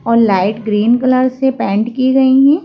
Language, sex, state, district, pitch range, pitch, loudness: Hindi, female, Madhya Pradesh, Bhopal, 215-265 Hz, 250 Hz, -13 LUFS